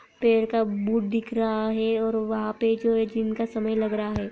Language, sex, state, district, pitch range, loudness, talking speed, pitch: Hindi, female, Maharashtra, Aurangabad, 220-225 Hz, -25 LUFS, 220 wpm, 225 Hz